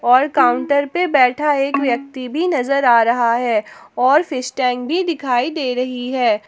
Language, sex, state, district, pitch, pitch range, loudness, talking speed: Hindi, female, Jharkhand, Palamu, 260 Hz, 245-285 Hz, -17 LUFS, 175 wpm